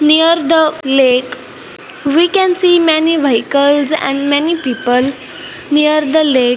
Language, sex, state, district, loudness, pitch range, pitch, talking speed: English, female, Punjab, Fazilka, -12 LUFS, 270-325 Hz, 300 Hz, 130 wpm